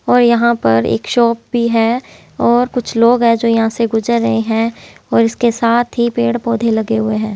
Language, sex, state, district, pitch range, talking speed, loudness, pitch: Hindi, female, Haryana, Jhajjar, 225-235 Hz, 185 wpm, -14 LUFS, 230 Hz